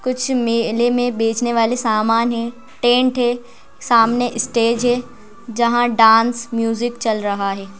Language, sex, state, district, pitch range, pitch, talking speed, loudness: Hindi, female, Madhya Pradesh, Bhopal, 225-245 Hz, 235 Hz, 140 wpm, -17 LUFS